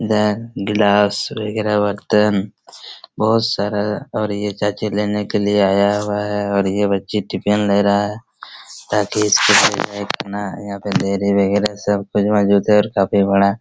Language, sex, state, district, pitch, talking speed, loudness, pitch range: Hindi, male, Chhattisgarh, Raigarh, 105 Hz, 145 wpm, -17 LUFS, 100-105 Hz